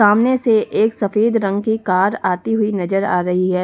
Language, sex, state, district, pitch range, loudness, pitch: Hindi, female, Delhi, New Delhi, 185-220 Hz, -17 LUFS, 205 Hz